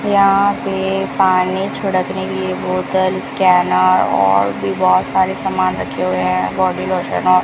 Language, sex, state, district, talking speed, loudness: Hindi, female, Rajasthan, Bikaner, 160 wpm, -16 LUFS